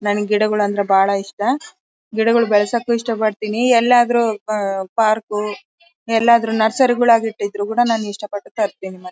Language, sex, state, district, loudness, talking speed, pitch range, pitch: Kannada, female, Karnataka, Bellary, -17 LUFS, 125 wpm, 205-235 Hz, 220 Hz